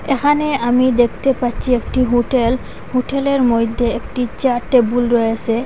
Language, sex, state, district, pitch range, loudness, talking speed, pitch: Bengali, female, Assam, Hailakandi, 240-260 Hz, -16 LUFS, 125 wpm, 245 Hz